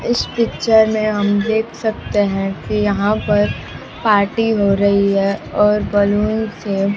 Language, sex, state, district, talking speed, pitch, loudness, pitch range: Hindi, female, Bihar, Kaimur, 145 wpm, 205 Hz, -16 LUFS, 200-220 Hz